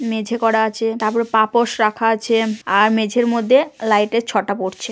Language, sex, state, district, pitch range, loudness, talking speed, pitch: Bengali, female, West Bengal, Kolkata, 215-230 Hz, -17 LUFS, 170 wpm, 225 Hz